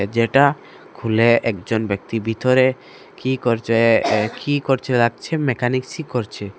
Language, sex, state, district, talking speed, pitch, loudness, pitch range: Bengali, male, Assam, Hailakandi, 120 wpm, 120 Hz, -19 LUFS, 115-130 Hz